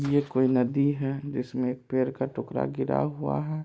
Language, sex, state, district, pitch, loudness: Maithili, male, Bihar, Supaul, 130 Hz, -28 LUFS